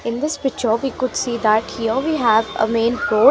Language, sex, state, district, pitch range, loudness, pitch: English, female, Haryana, Rohtak, 225-270 Hz, -19 LUFS, 235 Hz